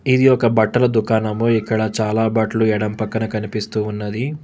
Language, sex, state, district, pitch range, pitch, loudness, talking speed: Telugu, male, Telangana, Hyderabad, 110-115 Hz, 110 Hz, -18 LUFS, 150 wpm